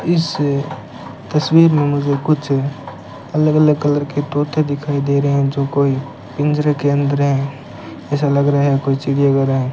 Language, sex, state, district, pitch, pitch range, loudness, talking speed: Hindi, male, Rajasthan, Bikaner, 140 Hz, 140-150 Hz, -16 LUFS, 170 wpm